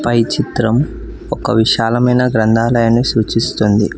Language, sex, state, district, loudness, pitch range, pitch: Telugu, male, Telangana, Hyderabad, -14 LUFS, 110-120 Hz, 115 Hz